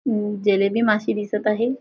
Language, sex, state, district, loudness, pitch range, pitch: Marathi, female, Maharashtra, Aurangabad, -21 LUFS, 210-230 Hz, 210 Hz